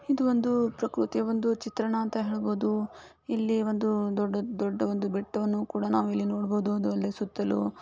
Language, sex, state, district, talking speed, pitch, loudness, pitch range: Kannada, female, Karnataka, Chamarajanagar, 160 wpm, 210 Hz, -29 LUFS, 200-225 Hz